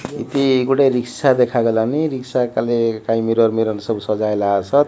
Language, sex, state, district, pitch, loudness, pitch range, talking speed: Odia, male, Odisha, Malkangiri, 115 Hz, -18 LUFS, 110-130 Hz, 150 wpm